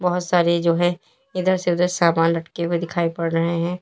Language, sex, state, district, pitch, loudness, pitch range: Hindi, female, Uttar Pradesh, Lalitpur, 170 Hz, -20 LUFS, 170-180 Hz